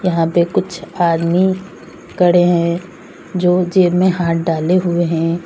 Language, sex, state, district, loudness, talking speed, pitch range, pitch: Hindi, female, Uttar Pradesh, Saharanpur, -15 LUFS, 145 wpm, 170-180 Hz, 175 Hz